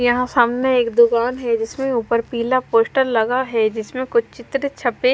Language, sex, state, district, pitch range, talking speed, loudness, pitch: Hindi, female, Punjab, Fazilka, 235-255 Hz, 175 wpm, -18 LUFS, 245 Hz